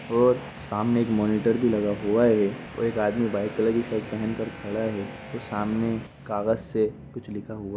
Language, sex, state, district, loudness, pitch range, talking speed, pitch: Hindi, male, Bihar, Gopalganj, -26 LUFS, 105-115 Hz, 200 wpm, 110 Hz